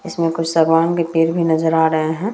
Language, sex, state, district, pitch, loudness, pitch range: Hindi, female, Bihar, Vaishali, 165 Hz, -16 LUFS, 160-170 Hz